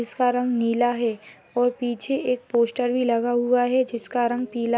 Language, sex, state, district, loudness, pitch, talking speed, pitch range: Hindi, female, Maharashtra, Solapur, -23 LUFS, 240 Hz, 200 wpm, 235-250 Hz